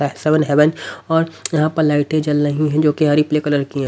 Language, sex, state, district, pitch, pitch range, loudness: Hindi, male, Haryana, Rohtak, 150 Hz, 145-155 Hz, -17 LUFS